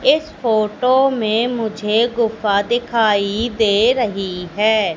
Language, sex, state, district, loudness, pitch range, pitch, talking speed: Hindi, female, Madhya Pradesh, Katni, -17 LUFS, 210-240 Hz, 220 Hz, 110 wpm